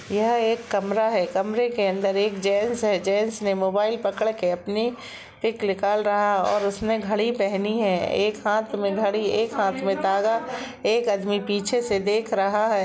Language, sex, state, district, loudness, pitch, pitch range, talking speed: Hindi, female, Jharkhand, Jamtara, -23 LUFS, 210 Hz, 200-220 Hz, 180 wpm